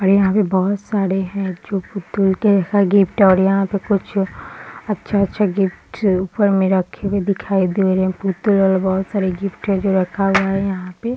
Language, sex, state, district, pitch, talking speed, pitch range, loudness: Hindi, female, Bihar, Gaya, 195 Hz, 175 wpm, 190-200 Hz, -18 LUFS